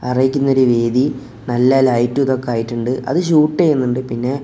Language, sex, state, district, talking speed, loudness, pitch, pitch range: Malayalam, male, Kerala, Kozhikode, 150 wpm, -16 LUFS, 130 Hz, 120-135 Hz